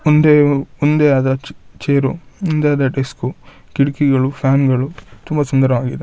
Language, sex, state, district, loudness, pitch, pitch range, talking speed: Kannada, male, Karnataka, Shimoga, -16 LUFS, 140 Hz, 130-150 Hz, 120 wpm